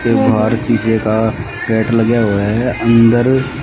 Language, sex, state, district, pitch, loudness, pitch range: Hindi, male, Haryana, Rohtak, 115 Hz, -13 LUFS, 110-120 Hz